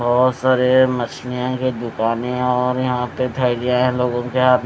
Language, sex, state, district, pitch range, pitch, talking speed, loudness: Hindi, male, Odisha, Nuapada, 125-130 Hz, 125 Hz, 195 wpm, -18 LUFS